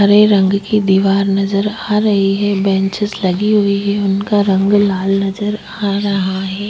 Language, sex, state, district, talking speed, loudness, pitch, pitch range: Hindi, female, Bihar, Vaishali, 170 wpm, -14 LUFS, 200 Hz, 195-205 Hz